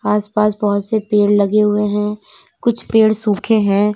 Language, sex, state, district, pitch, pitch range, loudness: Hindi, female, Uttar Pradesh, Lalitpur, 210 Hz, 205-215 Hz, -16 LUFS